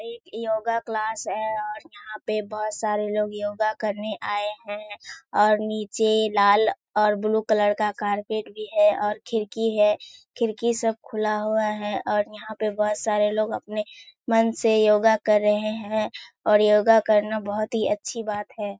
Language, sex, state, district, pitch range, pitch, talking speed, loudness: Hindi, female, Bihar, Kishanganj, 210-220 Hz, 215 Hz, 170 wpm, -23 LUFS